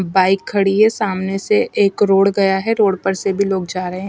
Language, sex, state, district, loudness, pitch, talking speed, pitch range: Hindi, female, Maharashtra, Mumbai Suburban, -16 LUFS, 195 Hz, 250 wpm, 190-200 Hz